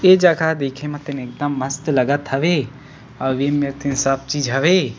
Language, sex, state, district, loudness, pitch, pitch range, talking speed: Chhattisgarhi, male, Chhattisgarh, Sukma, -19 LUFS, 140 Hz, 135-150 Hz, 180 wpm